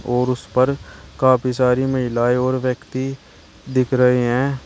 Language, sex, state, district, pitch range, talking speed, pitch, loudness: Hindi, male, Uttar Pradesh, Shamli, 125-130 Hz, 140 wpm, 130 Hz, -19 LUFS